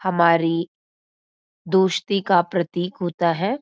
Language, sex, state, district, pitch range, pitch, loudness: Hindi, female, Uttarakhand, Uttarkashi, 170-190 Hz, 175 Hz, -21 LUFS